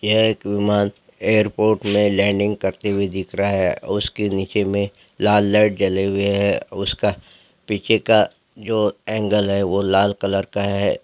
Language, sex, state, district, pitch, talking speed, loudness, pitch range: Hindi, male, Bihar, Gopalganj, 100 Hz, 165 wpm, -19 LUFS, 100-105 Hz